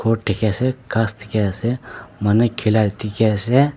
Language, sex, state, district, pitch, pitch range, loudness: Nagamese, male, Nagaland, Dimapur, 110 Hz, 105-120 Hz, -19 LUFS